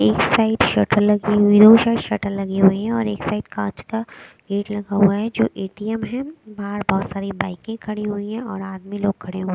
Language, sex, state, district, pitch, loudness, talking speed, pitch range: Hindi, female, Bihar, West Champaran, 205 Hz, -19 LUFS, 220 wpm, 195-220 Hz